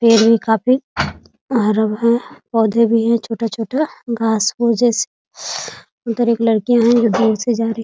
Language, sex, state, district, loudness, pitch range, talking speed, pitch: Hindi, female, Bihar, Muzaffarpur, -16 LUFS, 225-235 Hz, 160 wpm, 230 Hz